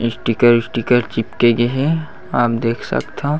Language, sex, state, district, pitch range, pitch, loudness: Chhattisgarhi, male, Chhattisgarh, Bastar, 115-130 Hz, 120 Hz, -17 LUFS